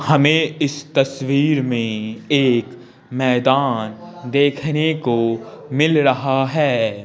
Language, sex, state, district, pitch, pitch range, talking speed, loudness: Hindi, male, Bihar, Patna, 135 Hz, 120-145 Hz, 95 wpm, -18 LUFS